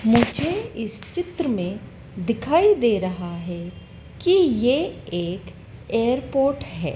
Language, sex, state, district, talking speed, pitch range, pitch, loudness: Hindi, female, Madhya Pradesh, Dhar, 110 wpm, 180-275 Hz, 230 Hz, -22 LUFS